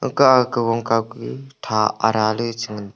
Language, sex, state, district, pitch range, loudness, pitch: Wancho, male, Arunachal Pradesh, Longding, 110-125 Hz, -19 LUFS, 115 Hz